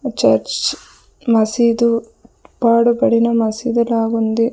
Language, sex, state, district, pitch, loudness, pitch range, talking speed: Telugu, female, Andhra Pradesh, Sri Satya Sai, 230 Hz, -16 LUFS, 225-235 Hz, 65 wpm